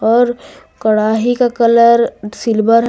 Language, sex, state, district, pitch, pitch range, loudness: Hindi, female, Jharkhand, Garhwa, 230 Hz, 220-240 Hz, -13 LUFS